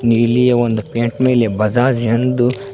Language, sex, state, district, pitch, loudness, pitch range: Kannada, male, Karnataka, Koppal, 120 Hz, -15 LUFS, 115-125 Hz